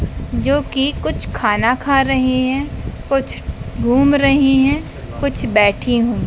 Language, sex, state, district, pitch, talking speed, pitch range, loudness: Hindi, female, Madhya Pradesh, Dhar, 270 Hz, 135 wpm, 250-275 Hz, -16 LUFS